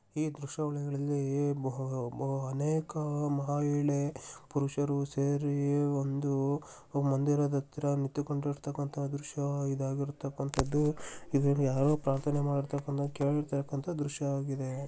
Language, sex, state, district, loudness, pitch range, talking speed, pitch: Kannada, male, Karnataka, Shimoga, -33 LUFS, 140-145 Hz, 75 wpm, 140 Hz